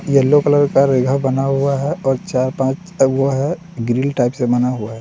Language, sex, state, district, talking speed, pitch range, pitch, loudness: Hindi, male, Bihar, West Champaran, 240 wpm, 130-140 Hz, 135 Hz, -16 LUFS